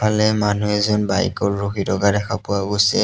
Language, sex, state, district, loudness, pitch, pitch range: Assamese, male, Assam, Sonitpur, -19 LUFS, 105 Hz, 100-105 Hz